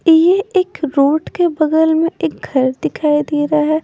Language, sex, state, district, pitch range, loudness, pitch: Hindi, female, Punjab, Pathankot, 295-330 Hz, -15 LUFS, 315 Hz